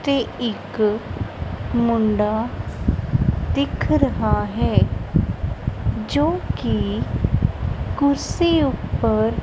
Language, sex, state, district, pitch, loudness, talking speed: Punjabi, female, Punjab, Kapurthala, 215 Hz, -21 LUFS, 65 wpm